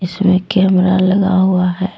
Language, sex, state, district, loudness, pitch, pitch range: Hindi, female, Jharkhand, Deoghar, -13 LUFS, 185 Hz, 185-190 Hz